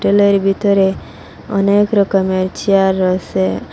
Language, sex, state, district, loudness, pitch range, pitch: Bengali, female, Assam, Hailakandi, -14 LUFS, 185-200 Hz, 195 Hz